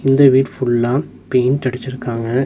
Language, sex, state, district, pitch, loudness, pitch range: Tamil, male, Tamil Nadu, Nilgiris, 130 Hz, -16 LUFS, 125-135 Hz